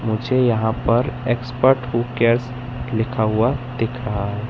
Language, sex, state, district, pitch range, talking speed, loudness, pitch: Hindi, male, Madhya Pradesh, Katni, 115-125 Hz, 120 wpm, -20 LUFS, 120 Hz